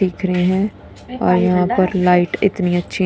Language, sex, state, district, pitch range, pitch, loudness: Hindi, female, Punjab, Kapurthala, 180-190 Hz, 185 Hz, -17 LUFS